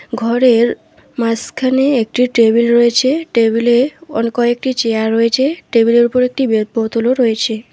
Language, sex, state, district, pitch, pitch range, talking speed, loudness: Bengali, female, West Bengal, Alipurduar, 235 Hz, 230-255 Hz, 115 wpm, -14 LUFS